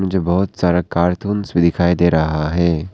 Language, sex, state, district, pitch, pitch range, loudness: Hindi, male, Arunachal Pradesh, Papum Pare, 85 Hz, 85-90 Hz, -17 LUFS